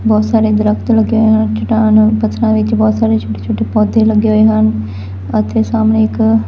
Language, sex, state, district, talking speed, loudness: Punjabi, female, Punjab, Fazilka, 195 wpm, -12 LUFS